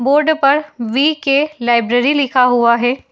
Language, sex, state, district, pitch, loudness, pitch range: Hindi, female, Uttar Pradesh, Etah, 270 Hz, -14 LUFS, 240-290 Hz